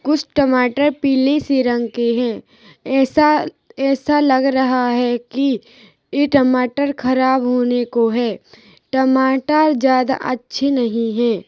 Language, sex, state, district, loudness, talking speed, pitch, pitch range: Hindi, female, Chhattisgarh, Rajnandgaon, -17 LUFS, 120 wpm, 260 Hz, 240-275 Hz